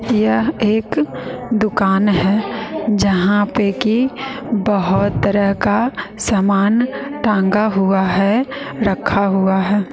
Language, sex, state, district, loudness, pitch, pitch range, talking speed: Hindi, female, Bihar, West Champaran, -16 LUFS, 205 Hz, 195-225 Hz, 105 wpm